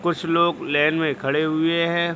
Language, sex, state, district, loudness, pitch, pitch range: Hindi, male, Bihar, Begusarai, -21 LUFS, 165 Hz, 155-170 Hz